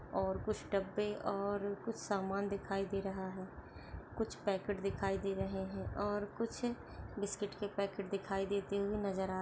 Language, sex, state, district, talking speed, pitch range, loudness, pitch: Hindi, female, Chhattisgarh, Jashpur, 165 wpm, 195-205 Hz, -39 LUFS, 200 Hz